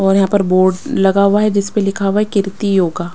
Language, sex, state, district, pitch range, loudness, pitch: Hindi, female, Bihar, West Champaran, 190-200 Hz, -14 LUFS, 195 Hz